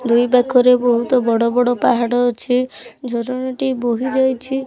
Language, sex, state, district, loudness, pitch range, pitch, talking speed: Odia, female, Odisha, Khordha, -16 LUFS, 240-255 Hz, 245 Hz, 115 wpm